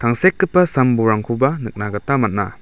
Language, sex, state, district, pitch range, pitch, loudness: Garo, male, Meghalaya, West Garo Hills, 110-140 Hz, 120 Hz, -17 LUFS